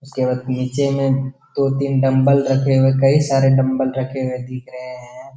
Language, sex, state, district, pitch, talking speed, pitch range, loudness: Hindi, male, Bihar, Jamui, 135 Hz, 180 wpm, 130-135 Hz, -17 LUFS